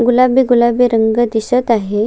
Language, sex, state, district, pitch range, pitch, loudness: Marathi, female, Maharashtra, Sindhudurg, 225-245 Hz, 240 Hz, -13 LUFS